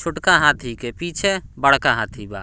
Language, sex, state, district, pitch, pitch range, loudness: Bhojpuri, male, Bihar, Muzaffarpur, 140 Hz, 120-170 Hz, -18 LUFS